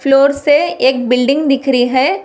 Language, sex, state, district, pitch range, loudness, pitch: Hindi, female, Telangana, Hyderabad, 250-280 Hz, -12 LUFS, 270 Hz